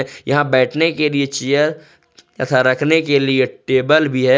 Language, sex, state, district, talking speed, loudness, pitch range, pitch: Hindi, male, Jharkhand, Ranchi, 165 wpm, -16 LUFS, 130-150 Hz, 140 Hz